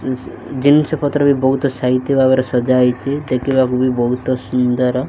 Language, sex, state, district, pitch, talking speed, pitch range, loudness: Odia, male, Odisha, Malkangiri, 130 Hz, 130 wpm, 125-140 Hz, -16 LUFS